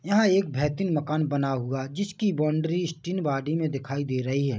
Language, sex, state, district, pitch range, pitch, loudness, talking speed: Hindi, male, Chhattisgarh, Bilaspur, 135-180 Hz, 150 Hz, -27 LUFS, 210 wpm